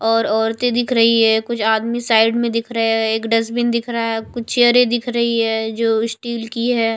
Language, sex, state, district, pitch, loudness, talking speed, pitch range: Hindi, female, Chhattisgarh, Raipur, 230 Hz, -17 LUFS, 225 wpm, 225-235 Hz